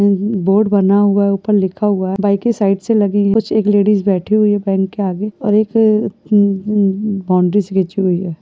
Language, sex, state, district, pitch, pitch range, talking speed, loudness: Hindi, female, Uttar Pradesh, Budaun, 200 Hz, 195-210 Hz, 230 wpm, -14 LUFS